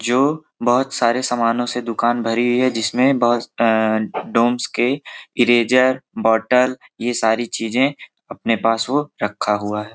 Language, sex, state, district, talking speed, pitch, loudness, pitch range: Hindi, male, Bihar, Gopalganj, 140 wpm, 120 Hz, -18 LUFS, 115-125 Hz